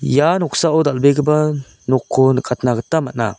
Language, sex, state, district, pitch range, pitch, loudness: Garo, male, Meghalaya, South Garo Hills, 125-150 Hz, 135 Hz, -16 LUFS